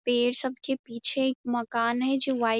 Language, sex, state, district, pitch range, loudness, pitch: Hindi, female, Bihar, Darbhanga, 235-265 Hz, -26 LUFS, 245 Hz